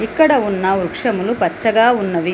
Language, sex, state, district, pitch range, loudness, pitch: Telugu, female, Telangana, Hyderabad, 190-235 Hz, -16 LUFS, 220 Hz